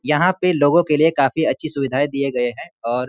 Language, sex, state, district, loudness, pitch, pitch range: Hindi, male, Jharkhand, Sahebganj, -18 LUFS, 145 Hz, 135-160 Hz